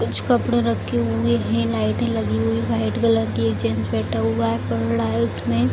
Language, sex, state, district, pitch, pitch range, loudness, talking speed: Hindi, female, Bihar, Gopalganj, 115 Hz, 110-115 Hz, -20 LUFS, 210 wpm